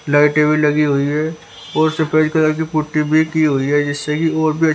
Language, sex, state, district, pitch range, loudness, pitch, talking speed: Hindi, male, Haryana, Rohtak, 150-155 Hz, -16 LUFS, 155 Hz, 225 wpm